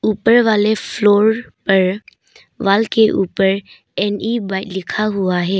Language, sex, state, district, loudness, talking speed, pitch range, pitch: Hindi, female, Arunachal Pradesh, Papum Pare, -16 LUFS, 140 wpm, 190-220 Hz, 205 Hz